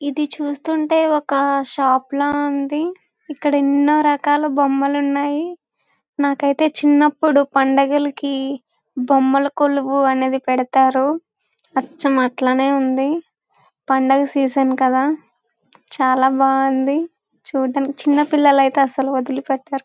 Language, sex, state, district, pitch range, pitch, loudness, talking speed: Telugu, female, Andhra Pradesh, Visakhapatnam, 270-290 Hz, 280 Hz, -17 LUFS, 105 wpm